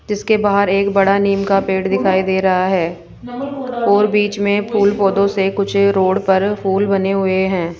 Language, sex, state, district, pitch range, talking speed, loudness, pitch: Hindi, female, Rajasthan, Jaipur, 190-205 Hz, 185 wpm, -15 LUFS, 195 Hz